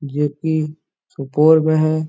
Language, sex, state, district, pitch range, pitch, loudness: Hindi, male, Bihar, Supaul, 150-155 Hz, 155 Hz, -17 LUFS